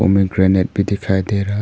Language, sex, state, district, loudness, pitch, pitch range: Hindi, male, Arunachal Pradesh, Papum Pare, -17 LUFS, 100 Hz, 95-100 Hz